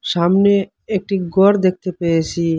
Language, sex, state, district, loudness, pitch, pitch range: Bengali, male, Assam, Hailakandi, -16 LUFS, 185 Hz, 170-195 Hz